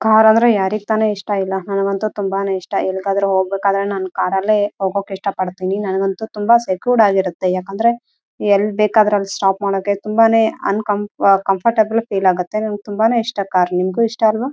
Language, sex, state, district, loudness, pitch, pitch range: Kannada, female, Karnataka, Raichur, -17 LUFS, 200 Hz, 195-215 Hz